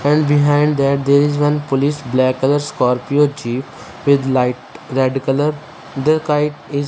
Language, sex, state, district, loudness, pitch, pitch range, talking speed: English, male, Punjab, Fazilka, -16 LUFS, 140 Hz, 130-145 Hz, 155 wpm